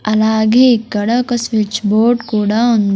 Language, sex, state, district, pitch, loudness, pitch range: Telugu, male, Andhra Pradesh, Sri Satya Sai, 220 Hz, -13 LUFS, 215-235 Hz